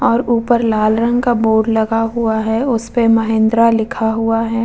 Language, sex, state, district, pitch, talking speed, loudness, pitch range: Hindi, female, Bihar, Vaishali, 225 Hz, 195 wpm, -15 LUFS, 220-235 Hz